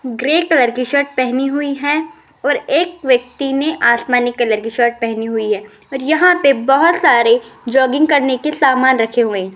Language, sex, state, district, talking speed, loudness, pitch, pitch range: Hindi, female, Rajasthan, Jaipur, 190 wpm, -14 LUFS, 260 Hz, 235-290 Hz